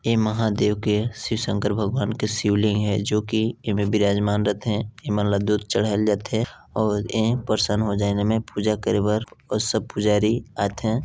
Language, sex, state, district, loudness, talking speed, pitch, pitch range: Hindi, male, Chhattisgarh, Balrampur, -23 LUFS, 185 wpm, 105 Hz, 105-110 Hz